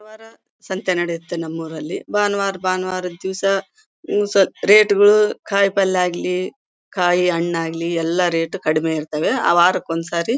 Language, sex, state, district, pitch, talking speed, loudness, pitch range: Kannada, female, Karnataka, Bellary, 185 Hz, 140 wpm, -18 LUFS, 170-200 Hz